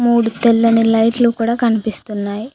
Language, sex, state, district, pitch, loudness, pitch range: Telugu, female, Telangana, Mahabubabad, 230 Hz, -15 LUFS, 220-235 Hz